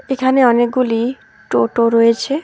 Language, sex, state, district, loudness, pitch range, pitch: Bengali, female, West Bengal, Alipurduar, -15 LUFS, 230-265 Hz, 250 Hz